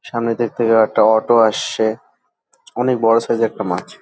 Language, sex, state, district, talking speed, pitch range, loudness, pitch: Bengali, male, West Bengal, Dakshin Dinajpur, 195 wpm, 110-115 Hz, -16 LUFS, 115 Hz